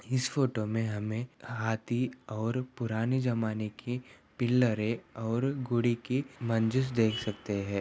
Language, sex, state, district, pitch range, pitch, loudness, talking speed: Hindi, male, Andhra Pradesh, Anantapur, 110-125 Hz, 115 Hz, -32 LUFS, 125 wpm